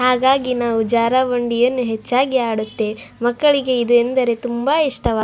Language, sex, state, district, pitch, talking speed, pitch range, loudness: Kannada, female, Karnataka, Raichur, 245 Hz, 125 wpm, 235-255 Hz, -18 LUFS